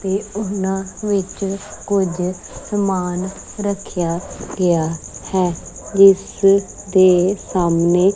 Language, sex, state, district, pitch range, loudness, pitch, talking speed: Punjabi, female, Punjab, Kapurthala, 180-200 Hz, -18 LUFS, 190 Hz, 80 wpm